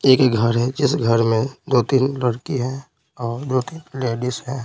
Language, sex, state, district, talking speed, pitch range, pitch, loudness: Hindi, male, Bihar, Patna, 165 wpm, 120-135 Hz, 130 Hz, -20 LUFS